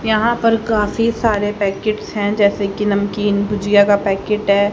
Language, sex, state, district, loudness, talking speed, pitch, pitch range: Hindi, female, Haryana, Rohtak, -16 LUFS, 165 wpm, 205 Hz, 200-215 Hz